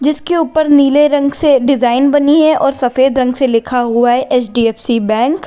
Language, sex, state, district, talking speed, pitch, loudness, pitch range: Hindi, female, Uttar Pradesh, Lalitpur, 195 wpm, 270 Hz, -12 LUFS, 245-290 Hz